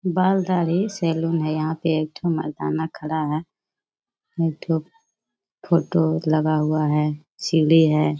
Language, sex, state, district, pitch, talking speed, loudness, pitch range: Hindi, female, Bihar, Jamui, 160 Hz, 130 wpm, -22 LUFS, 155-170 Hz